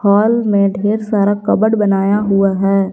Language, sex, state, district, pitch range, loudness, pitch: Hindi, female, Jharkhand, Garhwa, 195-210 Hz, -14 LUFS, 200 Hz